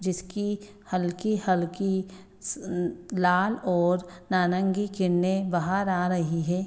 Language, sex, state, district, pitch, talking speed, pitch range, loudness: Hindi, female, Bihar, Gopalganj, 185 Hz, 115 wpm, 180-195 Hz, -27 LUFS